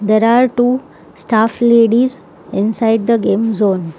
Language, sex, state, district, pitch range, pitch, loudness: English, female, Telangana, Hyderabad, 215-240 Hz, 225 Hz, -14 LUFS